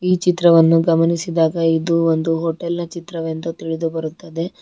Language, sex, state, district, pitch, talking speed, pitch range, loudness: Kannada, female, Karnataka, Bangalore, 165 Hz, 130 wpm, 165-170 Hz, -18 LUFS